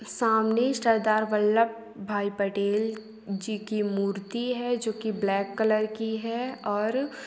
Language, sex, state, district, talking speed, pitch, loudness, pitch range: Bhojpuri, female, Uttar Pradesh, Gorakhpur, 130 wpm, 220 Hz, -27 LUFS, 205-230 Hz